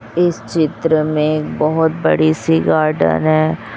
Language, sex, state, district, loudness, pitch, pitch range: Hindi, male, Chhattisgarh, Raipur, -15 LUFS, 155 Hz, 155-160 Hz